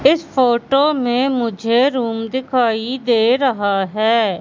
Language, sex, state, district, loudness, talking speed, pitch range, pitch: Hindi, female, Madhya Pradesh, Katni, -17 LUFS, 120 wpm, 225-260 Hz, 245 Hz